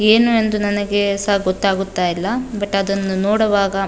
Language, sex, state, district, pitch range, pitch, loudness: Kannada, female, Karnataka, Dakshina Kannada, 195-210 Hz, 200 Hz, -17 LUFS